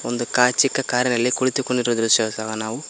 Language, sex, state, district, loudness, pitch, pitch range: Kannada, male, Karnataka, Koppal, -20 LUFS, 125 Hz, 115-125 Hz